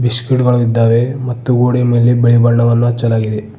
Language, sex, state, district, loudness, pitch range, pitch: Kannada, male, Karnataka, Bidar, -12 LUFS, 115-125 Hz, 120 Hz